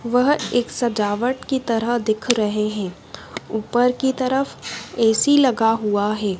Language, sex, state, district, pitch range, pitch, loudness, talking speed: Hindi, female, Madhya Pradesh, Dhar, 215-255 Hz, 235 Hz, -20 LUFS, 140 wpm